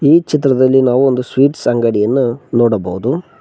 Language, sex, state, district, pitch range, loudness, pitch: Kannada, male, Karnataka, Koppal, 120-140 Hz, -13 LUFS, 130 Hz